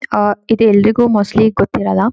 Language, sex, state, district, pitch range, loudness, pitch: Kannada, female, Karnataka, Shimoga, 205-220 Hz, -13 LUFS, 210 Hz